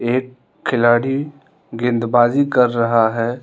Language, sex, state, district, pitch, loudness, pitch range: Hindi, male, Arunachal Pradesh, Lower Dibang Valley, 120 Hz, -17 LUFS, 120-135 Hz